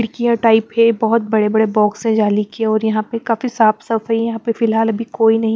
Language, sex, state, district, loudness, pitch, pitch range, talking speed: Hindi, female, Bihar, West Champaran, -16 LUFS, 225 Hz, 220-230 Hz, 250 wpm